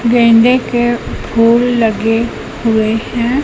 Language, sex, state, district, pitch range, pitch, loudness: Hindi, female, Madhya Pradesh, Katni, 225-240 Hz, 235 Hz, -12 LUFS